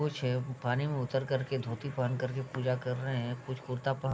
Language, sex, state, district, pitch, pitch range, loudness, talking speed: Hindi, male, Bihar, Vaishali, 130 Hz, 125-135 Hz, -34 LUFS, 260 wpm